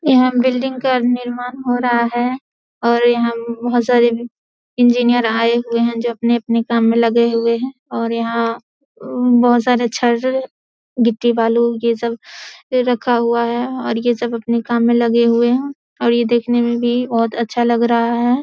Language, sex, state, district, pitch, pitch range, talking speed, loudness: Hindi, female, Bihar, Samastipur, 235 Hz, 235-245 Hz, 175 wpm, -16 LUFS